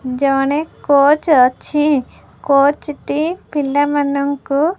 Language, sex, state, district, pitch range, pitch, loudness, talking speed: Odia, female, Odisha, Khordha, 275-300 Hz, 285 Hz, -15 LUFS, 90 wpm